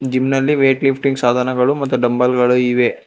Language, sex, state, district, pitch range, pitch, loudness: Kannada, male, Karnataka, Bangalore, 125-135 Hz, 130 Hz, -15 LUFS